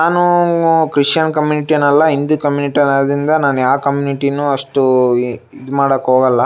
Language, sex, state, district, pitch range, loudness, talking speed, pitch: Kannada, male, Karnataka, Shimoga, 135-155 Hz, -14 LUFS, 140 wpm, 140 Hz